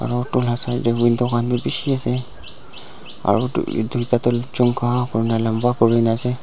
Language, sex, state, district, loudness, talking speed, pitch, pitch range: Nagamese, male, Nagaland, Dimapur, -20 LUFS, 175 wpm, 120 Hz, 120-125 Hz